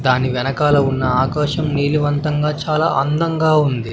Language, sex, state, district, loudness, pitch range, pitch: Telugu, male, Andhra Pradesh, Sri Satya Sai, -17 LUFS, 135-150 Hz, 145 Hz